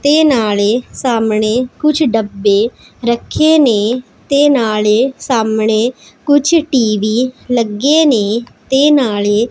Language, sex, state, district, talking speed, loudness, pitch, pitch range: Punjabi, female, Punjab, Pathankot, 105 wpm, -13 LUFS, 240 Hz, 220-280 Hz